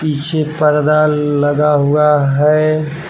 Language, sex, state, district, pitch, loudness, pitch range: Hindi, male, Jharkhand, Palamu, 150 Hz, -13 LUFS, 150-155 Hz